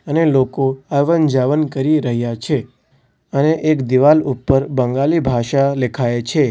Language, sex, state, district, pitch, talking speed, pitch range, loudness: Gujarati, male, Gujarat, Valsad, 135 Hz, 130 wpm, 130-150 Hz, -16 LUFS